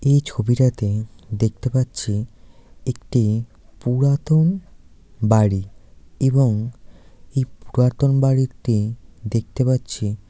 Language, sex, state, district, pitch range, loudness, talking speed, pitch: Bengali, male, West Bengal, Dakshin Dinajpur, 105-130 Hz, -21 LUFS, 75 wpm, 115 Hz